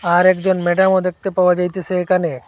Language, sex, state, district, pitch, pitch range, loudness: Bengali, male, Assam, Hailakandi, 185 Hz, 180-185 Hz, -16 LUFS